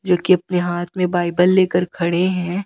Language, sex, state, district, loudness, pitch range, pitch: Hindi, female, Chhattisgarh, Raipur, -18 LUFS, 175-185 Hz, 180 Hz